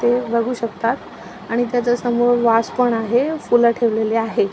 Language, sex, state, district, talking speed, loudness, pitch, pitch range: Marathi, female, Maharashtra, Aurangabad, 145 wpm, -18 LUFS, 235 Hz, 230-245 Hz